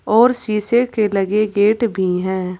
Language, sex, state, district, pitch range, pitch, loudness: Hindi, female, Uttar Pradesh, Saharanpur, 190-230 Hz, 210 Hz, -17 LUFS